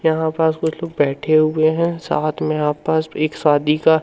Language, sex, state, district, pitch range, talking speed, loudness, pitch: Hindi, male, Madhya Pradesh, Umaria, 150-160 Hz, 210 wpm, -18 LUFS, 155 Hz